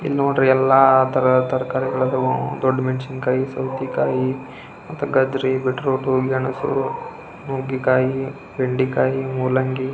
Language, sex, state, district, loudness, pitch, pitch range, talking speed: Kannada, male, Karnataka, Belgaum, -20 LUFS, 130 Hz, 130-135 Hz, 115 wpm